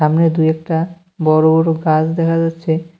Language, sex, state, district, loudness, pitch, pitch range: Bengali, male, West Bengal, Cooch Behar, -15 LUFS, 160 Hz, 160-165 Hz